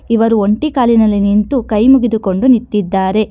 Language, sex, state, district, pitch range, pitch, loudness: Kannada, female, Karnataka, Bangalore, 205-245 Hz, 220 Hz, -12 LUFS